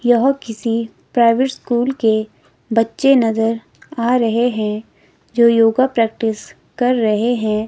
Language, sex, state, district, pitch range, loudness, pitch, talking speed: Hindi, female, Himachal Pradesh, Shimla, 225-245 Hz, -17 LUFS, 230 Hz, 125 wpm